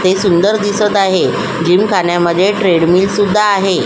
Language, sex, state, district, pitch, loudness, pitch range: Marathi, female, Maharashtra, Solapur, 195 Hz, -12 LUFS, 180-205 Hz